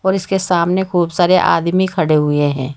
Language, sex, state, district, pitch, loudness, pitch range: Hindi, female, Uttar Pradesh, Saharanpur, 175 Hz, -15 LUFS, 155-185 Hz